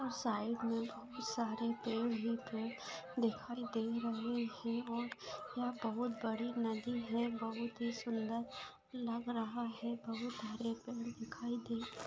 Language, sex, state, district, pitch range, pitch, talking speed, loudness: Hindi, female, Bihar, Saran, 225-240 Hz, 230 Hz, 140 wpm, -41 LUFS